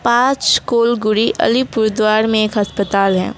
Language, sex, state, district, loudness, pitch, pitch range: Hindi, female, West Bengal, Alipurduar, -15 LUFS, 220 Hz, 210-235 Hz